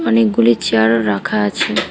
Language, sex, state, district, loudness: Bengali, female, West Bengal, Alipurduar, -15 LUFS